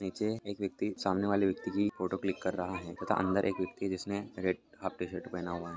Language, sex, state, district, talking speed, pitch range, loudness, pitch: Hindi, male, Bihar, Saran, 240 wpm, 90-100 Hz, -34 LUFS, 95 Hz